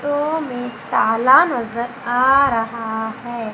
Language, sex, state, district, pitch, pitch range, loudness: Hindi, female, Madhya Pradesh, Umaria, 240 Hz, 225-270 Hz, -18 LUFS